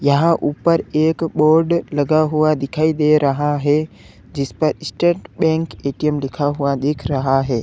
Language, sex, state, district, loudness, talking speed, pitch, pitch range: Hindi, male, Uttar Pradesh, Lalitpur, -18 LUFS, 155 wpm, 150 Hz, 140-160 Hz